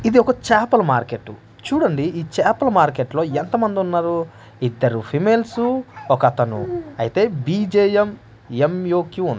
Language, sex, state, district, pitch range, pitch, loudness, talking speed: Telugu, male, Andhra Pradesh, Manyam, 145-225 Hz, 175 Hz, -19 LUFS, 100 wpm